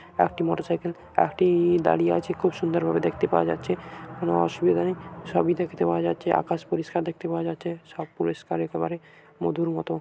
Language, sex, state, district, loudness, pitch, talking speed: Bengali, male, West Bengal, Jhargram, -25 LUFS, 155 Hz, 170 wpm